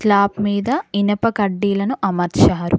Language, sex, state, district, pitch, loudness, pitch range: Telugu, female, Telangana, Mahabubabad, 205 Hz, -18 LUFS, 200-210 Hz